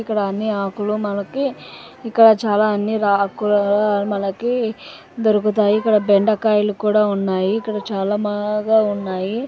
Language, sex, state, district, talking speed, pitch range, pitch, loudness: Telugu, female, Andhra Pradesh, Anantapur, 115 wpm, 205-220 Hz, 210 Hz, -18 LUFS